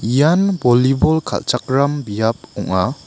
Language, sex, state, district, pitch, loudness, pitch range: Garo, male, Meghalaya, West Garo Hills, 130 Hz, -17 LUFS, 120-150 Hz